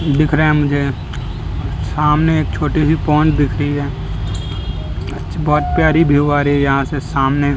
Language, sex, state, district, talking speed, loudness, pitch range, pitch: Hindi, male, Delhi, New Delhi, 175 wpm, -16 LUFS, 135-150 Hz, 145 Hz